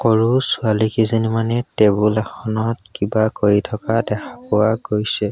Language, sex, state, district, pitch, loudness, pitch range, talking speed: Assamese, male, Assam, Sonitpur, 110 Hz, -18 LUFS, 105-115 Hz, 125 wpm